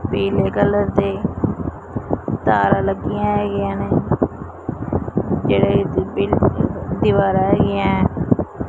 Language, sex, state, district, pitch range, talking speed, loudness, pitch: Punjabi, male, Punjab, Pathankot, 90-100 Hz, 75 wpm, -19 LUFS, 100 Hz